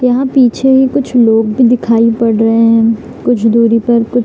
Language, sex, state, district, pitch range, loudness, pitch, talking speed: Hindi, female, Bihar, Gaya, 230-250 Hz, -10 LUFS, 235 Hz, 200 wpm